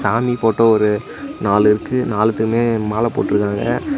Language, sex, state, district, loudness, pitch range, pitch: Tamil, male, Tamil Nadu, Namakkal, -17 LUFS, 105-120 Hz, 110 Hz